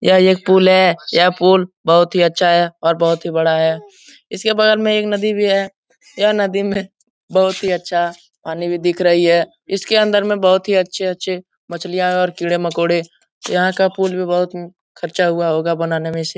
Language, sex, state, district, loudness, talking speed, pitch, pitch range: Hindi, male, Bihar, Jahanabad, -16 LUFS, 190 wpm, 180 Hz, 170-190 Hz